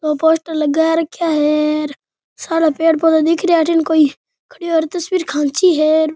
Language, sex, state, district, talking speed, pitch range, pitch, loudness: Rajasthani, male, Rajasthan, Nagaur, 165 wpm, 305-330 Hz, 320 Hz, -15 LUFS